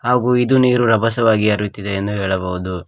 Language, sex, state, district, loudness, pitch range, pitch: Kannada, male, Karnataka, Koppal, -16 LUFS, 100-120 Hz, 105 Hz